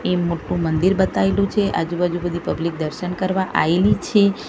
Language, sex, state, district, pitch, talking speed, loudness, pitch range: Gujarati, female, Gujarat, Gandhinagar, 180 Hz, 175 wpm, -20 LUFS, 170-195 Hz